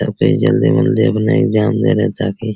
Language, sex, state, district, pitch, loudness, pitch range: Hindi, male, Bihar, Araria, 110 Hz, -14 LUFS, 95-110 Hz